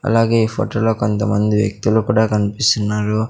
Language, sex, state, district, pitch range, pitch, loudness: Telugu, male, Andhra Pradesh, Sri Satya Sai, 105-115 Hz, 110 Hz, -17 LUFS